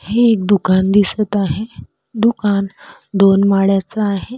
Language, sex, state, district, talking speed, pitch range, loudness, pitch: Marathi, female, Maharashtra, Sindhudurg, 125 wpm, 195-215 Hz, -15 LUFS, 200 Hz